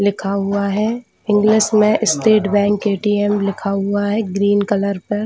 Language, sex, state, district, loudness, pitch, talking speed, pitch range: Hindi, female, Chhattisgarh, Bilaspur, -17 LUFS, 205 Hz, 160 wpm, 200-215 Hz